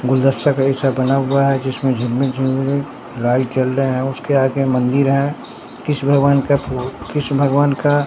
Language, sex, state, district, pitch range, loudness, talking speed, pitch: Hindi, male, Bihar, Katihar, 130-140 Hz, -17 LUFS, 165 wpm, 135 Hz